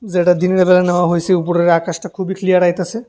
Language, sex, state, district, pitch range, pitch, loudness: Bengali, male, Tripura, West Tripura, 175-185 Hz, 180 Hz, -15 LUFS